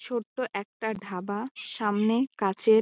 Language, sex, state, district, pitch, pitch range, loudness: Bengali, female, West Bengal, Malda, 220 Hz, 205-230 Hz, -29 LUFS